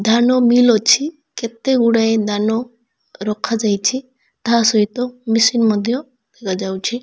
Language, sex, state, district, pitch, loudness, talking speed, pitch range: Odia, male, Odisha, Malkangiri, 230 Hz, -16 LUFS, 120 wpm, 220-245 Hz